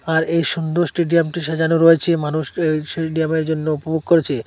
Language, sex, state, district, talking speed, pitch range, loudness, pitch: Bengali, male, Assam, Hailakandi, 160 wpm, 155-165 Hz, -18 LUFS, 160 Hz